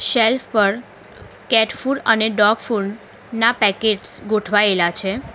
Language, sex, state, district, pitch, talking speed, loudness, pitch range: Gujarati, female, Gujarat, Valsad, 220 Hz, 125 wpm, -17 LUFS, 205-230 Hz